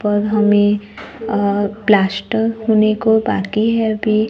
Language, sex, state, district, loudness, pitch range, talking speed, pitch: Hindi, female, Maharashtra, Gondia, -16 LUFS, 205-220 Hz, 125 wpm, 215 Hz